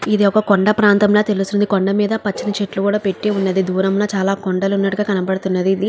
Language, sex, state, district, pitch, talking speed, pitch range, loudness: Telugu, female, Andhra Pradesh, Guntur, 200 Hz, 215 wpm, 195-210 Hz, -17 LUFS